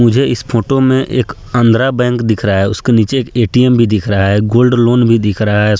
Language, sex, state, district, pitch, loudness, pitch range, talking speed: Hindi, male, Bihar, Sitamarhi, 115 Hz, -12 LUFS, 105-125 Hz, 250 wpm